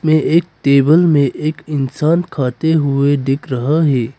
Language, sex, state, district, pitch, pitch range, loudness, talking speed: Hindi, male, Arunachal Pradesh, Papum Pare, 145 Hz, 135-160 Hz, -15 LUFS, 155 wpm